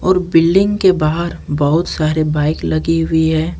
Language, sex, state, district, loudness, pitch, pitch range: Hindi, male, Jharkhand, Ranchi, -15 LUFS, 165 Hz, 155-175 Hz